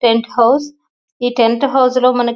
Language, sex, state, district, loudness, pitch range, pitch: Telugu, female, Telangana, Nalgonda, -14 LUFS, 235-265 Hz, 245 Hz